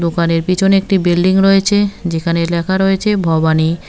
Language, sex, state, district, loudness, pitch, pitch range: Bengali, female, West Bengal, Cooch Behar, -14 LUFS, 180 Hz, 170-195 Hz